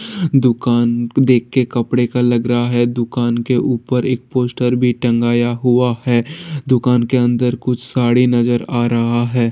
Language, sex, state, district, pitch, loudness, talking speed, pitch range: Hindi, male, Bihar, Jahanabad, 120 Hz, -16 LUFS, 170 wpm, 120-125 Hz